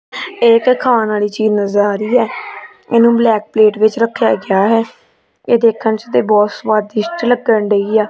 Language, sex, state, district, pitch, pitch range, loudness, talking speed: Punjabi, female, Punjab, Kapurthala, 220 Hz, 210-235 Hz, -13 LUFS, 180 wpm